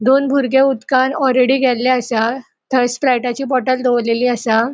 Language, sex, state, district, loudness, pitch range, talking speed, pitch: Konkani, female, Goa, North and South Goa, -15 LUFS, 245-265 Hz, 140 wpm, 255 Hz